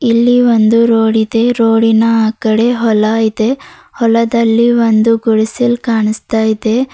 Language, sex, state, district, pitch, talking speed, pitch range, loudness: Kannada, female, Karnataka, Bidar, 230 Hz, 120 wpm, 220-235 Hz, -11 LUFS